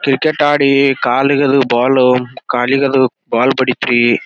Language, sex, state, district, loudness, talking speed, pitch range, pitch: Kannada, male, Karnataka, Gulbarga, -13 LUFS, 125 wpm, 125-140 Hz, 135 Hz